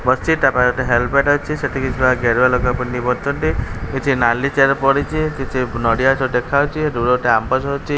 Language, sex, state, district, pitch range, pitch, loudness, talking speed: Odia, male, Odisha, Khordha, 125-140 Hz, 130 Hz, -17 LUFS, 180 wpm